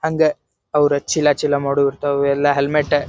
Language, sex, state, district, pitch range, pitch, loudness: Kannada, male, Karnataka, Dharwad, 140-150 Hz, 145 Hz, -18 LUFS